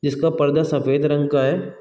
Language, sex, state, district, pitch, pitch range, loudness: Hindi, male, Uttar Pradesh, Gorakhpur, 145 Hz, 140-155 Hz, -19 LUFS